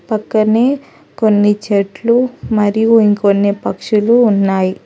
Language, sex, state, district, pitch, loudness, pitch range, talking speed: Telugu, female, Telangana, Hyderabad, 215 Hz, -13 LUFS, 200-230 Hz, 85 wpm